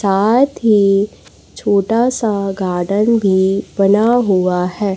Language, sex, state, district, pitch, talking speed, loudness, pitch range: Hindi, female, Chhattisgarh, Raipur, 200 Hz, 110 wpm, -14 LUFS, 195-220 Hz